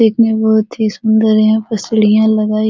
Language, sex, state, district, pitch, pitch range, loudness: Hindi, female, Bihar, Supaul, 220 Hz, 215-220 Hz, -12 LUFS